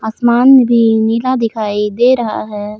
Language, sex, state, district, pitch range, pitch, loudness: Hindi, female, Jharkhand, Palamu, 215-240 Hz, 225 Hz, -12 LUFS